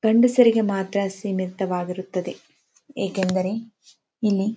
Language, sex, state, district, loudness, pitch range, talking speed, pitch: Kannada, female, Karnataka, Dharwad, -23 LUFS, 185-225 Hz, 65 wpm, 195 Hz